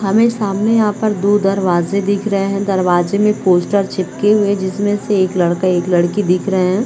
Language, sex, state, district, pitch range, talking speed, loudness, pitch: Hindi, female, Chhattisgarh, Bilaspur, 185-205 Hz, 210 wpm, -15 LUFS, 200 Hz